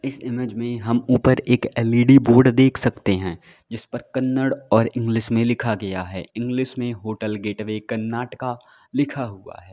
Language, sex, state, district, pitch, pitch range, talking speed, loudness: Hindi, male, Uttar Pradesh, Lalitpur, 120 Hz, 110-125 Hz, 175 wpm, -21 LUFS